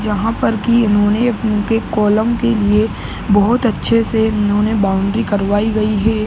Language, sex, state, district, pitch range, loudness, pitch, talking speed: Hindi, male, Uttar Pradesh, Ghazipur, 205-225 Hz, -15 LUFS, 215 Hz, 155 wpm